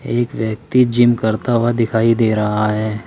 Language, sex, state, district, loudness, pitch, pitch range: Hindi, male, Uttar Pradesh, Saharanpur, -16 LUFS, 115 Hz, 110-120 Hz